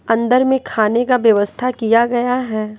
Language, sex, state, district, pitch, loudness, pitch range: Hindi, female, Bihar, West Champaran, 235 Hz, -16 LUFS, 220-250 Hz